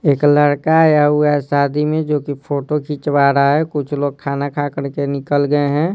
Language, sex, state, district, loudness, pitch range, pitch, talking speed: Hindi, male, Bihar, Patna, -16 LUFS, 140-150 Hz, 145 Hz, 220 wpm